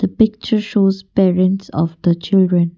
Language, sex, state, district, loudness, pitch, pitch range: English, female, Assam, Kamrup Metropolitan, -16 LUFS, 190 Hz, 175-200 Hz